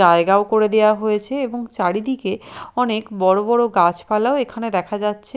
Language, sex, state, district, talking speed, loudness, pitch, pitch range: Bengali, female, Chhattisgarh, Raipur, 145 wpm, -18 LUFS, 215 Hz, 200-240 Hz